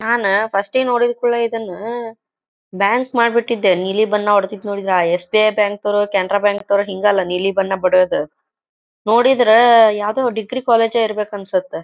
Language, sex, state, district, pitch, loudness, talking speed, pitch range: Kannada, female, Karnataka, Dharwad, 210 Hz, -16 LUFS, 165 wpm, 195-235 Hz